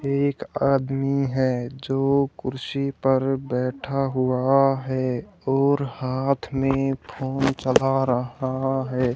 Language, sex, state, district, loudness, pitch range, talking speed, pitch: Hindi, male, Haryana, Charkhi Dadri, -23 LUFS, 130-135 Hz, 105 wpm, 135 Hz